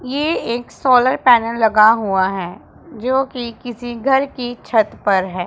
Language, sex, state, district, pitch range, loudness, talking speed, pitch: Hindi, female, Punjab, Pathankot, 215-255 Hz, -17 LUFS, 165 wpm, 235 Hz